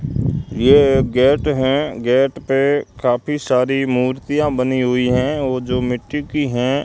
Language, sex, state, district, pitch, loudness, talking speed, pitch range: Hindi, male, Rajasthan, Bikaner, 135 Hz, -17 LUFS, 150 wpm, 125-145 Hz